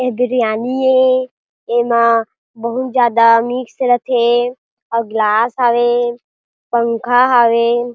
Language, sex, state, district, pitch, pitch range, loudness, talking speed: Chhattisgarhi, female, Chhattisgarh, Jashpur, 240 Hz, 235-250 Hz, -14 LUFS, 105 wpm